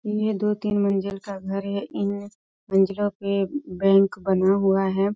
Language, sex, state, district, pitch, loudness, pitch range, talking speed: Hindi, female, Bihar, East Champaran, 200 Hz, -23 LUFS, 195-205 Hz, 175 wpm